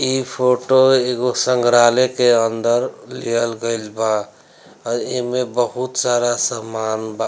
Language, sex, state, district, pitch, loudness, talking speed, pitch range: Bhojpuri, male, Bihar, Gopalganj, 120 Hz, -18 LUFS, 130 wpm, 115-125 Hz